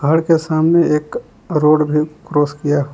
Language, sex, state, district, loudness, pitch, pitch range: Hindi, male, Jharkhand, Palamu, -15 LUFS, 150 Hz, 145-160 Hz